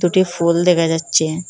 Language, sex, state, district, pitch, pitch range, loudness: Bengali, female, Assam, Hailakandi, 170 Hz, 165-180 Hz, -16 LUFS